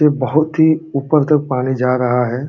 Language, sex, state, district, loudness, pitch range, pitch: Hindi, male, Uttar Pradesh, Jalaun, -15 LUFS, 125-155 Hz, 140 Hz